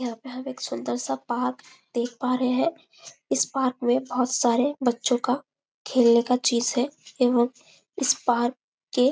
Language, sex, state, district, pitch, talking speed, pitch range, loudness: Hindi, female, Chhattisgarh, Bastar, 250 Hz, 170 wpm, 240-255 Hz, -25 LUFS